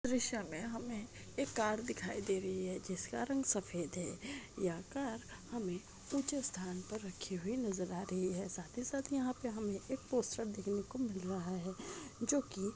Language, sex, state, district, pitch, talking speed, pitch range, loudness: Hindi, female, Jharkhand, Sahebganj, 205 Hz, 195 wpm, 185-245 Hz, -40 LUFS